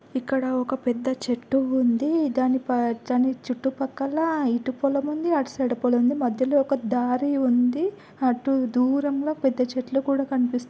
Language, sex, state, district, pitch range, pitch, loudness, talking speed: Telugu, female, Telangana, Nalgonda, 250-275 Hz, 260 Hz, -24 LUFS, 145 wpm